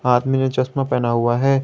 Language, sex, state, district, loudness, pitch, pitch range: Hindi, male, Jharkhand, Garhwa, -19 LUFS, 130 Hz, 125-135 Hz